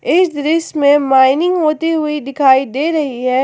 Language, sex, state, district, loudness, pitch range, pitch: Hindi, female, Jharkhand, Palamu, -14 LUFS, 270-320 Hz, 295 Hz